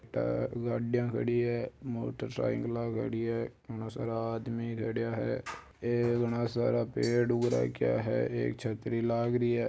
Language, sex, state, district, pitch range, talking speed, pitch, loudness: Marwari, male, Rajasthan, Churu, 110-120 Hz, 155 wpm, 115 Hz, -32 LUFS